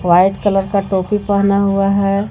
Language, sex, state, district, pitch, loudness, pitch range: Hindi, female, Jharkhand, Garhwa, 200 Hz, -15 LUFS, 195-200 Hz